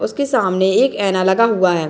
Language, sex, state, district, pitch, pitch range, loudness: Hindi, female, Bihar, Muzaffarpur, 195 Hz, 185-255 Hz, -16 LUFS